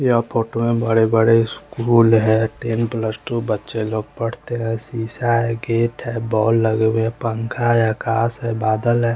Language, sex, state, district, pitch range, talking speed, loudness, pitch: Hindi, male, Chandigarh, Chandigarh, 110-115 Hz, 185 wpm, -19 LUFS, 115 Hz